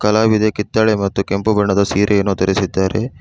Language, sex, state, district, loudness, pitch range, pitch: Kannada, male, Karnataka, Bangalore, -16 LUFS, 100-110 Hz, 100 Hz